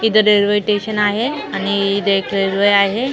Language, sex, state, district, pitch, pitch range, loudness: Marathi, female, Maharashtra, Mumbai Suburban, 205 Hz, 200-215 Hz, -16 LUFS